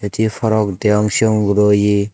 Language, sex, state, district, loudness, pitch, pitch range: Chakma, male, Tripura, Dhalai, -15 LUFS, 105 Hz, 105-110 Hz